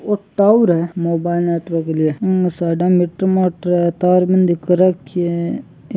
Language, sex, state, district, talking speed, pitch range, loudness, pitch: Marwari, male, Rajasthan, Churu, 170 wpm, 170-185 Hz, -16 LUFS, 175 Hz